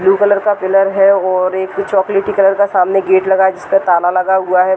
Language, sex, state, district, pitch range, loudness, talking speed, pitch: Hindi, female, Bihar, Gaya, 185-195 Hz, -13 LUFS, 250 wpm, 190 Hz